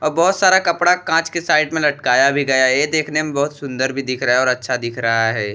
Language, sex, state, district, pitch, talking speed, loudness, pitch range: Bhojpuri, male, Uttar Pradesh, Deoria, 145 Hz, 280 wpm, -17 LUFS, 130-160 Hz